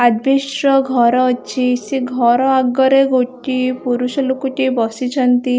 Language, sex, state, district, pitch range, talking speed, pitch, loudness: Odia, female, Odisha, Khordha, 250-265 Hz, 130 wpm, 255 Hz, -15 LUFS